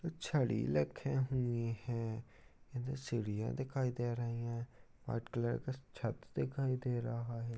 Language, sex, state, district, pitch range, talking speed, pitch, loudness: Hindi, male, Bihar, Jahanabad, 115-130 Hz, 140 wpm, 120 Hz, -39 LUFS